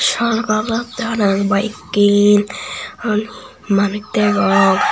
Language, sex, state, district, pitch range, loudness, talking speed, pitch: Chakma, male, Tripura, Unakoti, 200-220 Hz, -16 LUFS, 95 wpm, 205 Hz